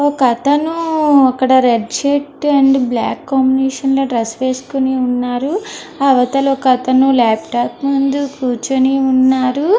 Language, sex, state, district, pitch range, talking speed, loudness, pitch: Telugu, female, Andhra Pradesh, Anantapur, 255-280 Hz, 115 wpm, -14 LUFS, 265 Hz